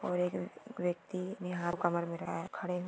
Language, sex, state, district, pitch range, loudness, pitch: Hindi, female, Maharashtra, Aurangabad, 175-180 Hz, -37 LUFS, 180 Hz